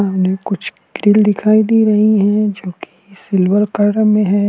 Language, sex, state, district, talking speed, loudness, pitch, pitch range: Hindi, male, Uttarakhand, Tehri Garhwal, 175 wpm, -14 LUFS, 205 Hz, 195-210 Hz